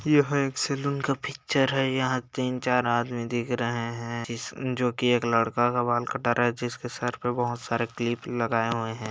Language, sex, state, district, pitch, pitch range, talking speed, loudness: Hindi, male, Uttar Pradesh, Hamirpur, 120 Hz, 120-130 Hz, 195 wpm, -27 LUFS